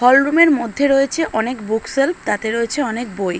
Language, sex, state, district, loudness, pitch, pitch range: Bengali, female, West Bengal, Dakshin Dinajpur, -17 LUFS, 250 Hz, 220-280 Hz